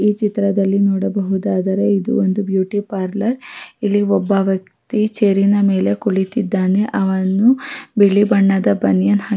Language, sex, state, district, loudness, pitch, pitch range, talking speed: Kannada, female, Karnataka, Raichur, -16 LUFS, 200 Hz, 190-205 Hz, 110 wpm